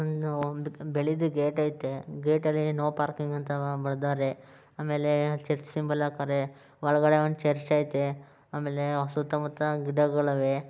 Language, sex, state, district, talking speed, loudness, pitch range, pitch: Kannada, male, Karnataka, Mysore, 120 wpm, -29 LUFS, 140-150 Hz, 145 Hz